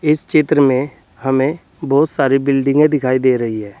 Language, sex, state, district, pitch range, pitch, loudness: Hindi, male, Uttar Pradesh, Saharanpur, 130-150 Hz, 135 Hz, -15 LUFS